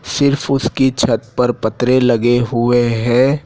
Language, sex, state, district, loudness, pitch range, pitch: Hindi, male, Madhya Pradesh, Dhar, -15 LUFS, 120-130 Hz, 120 Hz